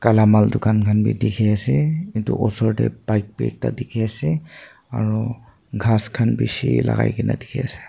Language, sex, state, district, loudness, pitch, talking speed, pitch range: Nagamese, male, Nagaland, Dimapur, -20 LUFS, 115 Hz, 175 wpm, 110-125 Hz